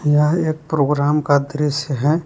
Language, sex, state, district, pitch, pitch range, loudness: Hindi, male, Jharkhand, Palamu, 150 Hz, 145-155 Hz, -18 LUFS